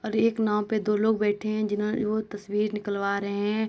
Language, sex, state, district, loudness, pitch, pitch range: Hindi, female, Uttar Pradesh, Jyotiba Phule Nagar, -27 LUFS, 210 Hz, 205-215 Hz